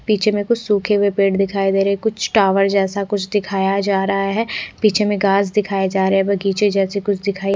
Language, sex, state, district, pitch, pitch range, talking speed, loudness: Hindi, female, Odisha, Khordha, 200 Hz, 195-205 Hz, 240 wpm, -17 LUFS